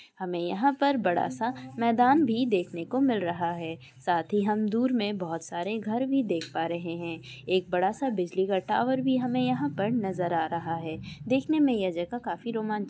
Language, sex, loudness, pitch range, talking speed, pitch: Maithili, female, -28 LUFS, 170-245 Hz, 215 wpm, 195 Hz